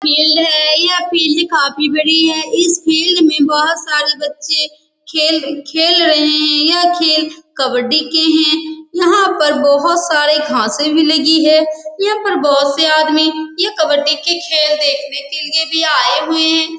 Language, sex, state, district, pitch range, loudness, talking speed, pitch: Hindi, female, Bihar, Saran, 300-325 Hz, -12 LUFS, 165 wpm, 310 Hz